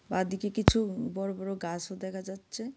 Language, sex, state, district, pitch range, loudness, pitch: Bengali, female, Tripura, West Tripura, 190-215 Hz, -32 LUFS, 195 Hz